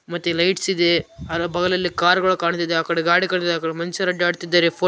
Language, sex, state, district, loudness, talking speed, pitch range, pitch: Kannada, male, Karnataka, Raichur, -20 LUFS, 210 wpm, 170-180 Hz, 175 Hz